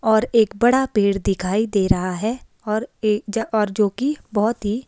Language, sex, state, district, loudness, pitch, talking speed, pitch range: Hindi, female, Himachal Pradesh, Shimla, -20 LUFS, 215 Hz, 185 wpm, 205-230 Hz